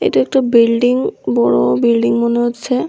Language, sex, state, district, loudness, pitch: Bengali, female, Tripura, West Tripura, -14 LUFS, 235 Hz